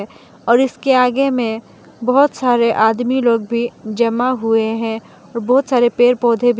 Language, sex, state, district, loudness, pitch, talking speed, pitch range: Hindi, female, Mizoram, Aizawl, -16 LUFS, 240 Hz, 170 wpm, 225-250 Hz